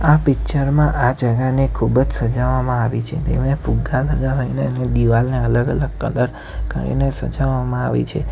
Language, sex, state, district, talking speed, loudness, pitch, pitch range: Gujarati, male, Gujarat, Valsad, 160 wpm, -19 LUFS, 130 Hz, 120-140 Hz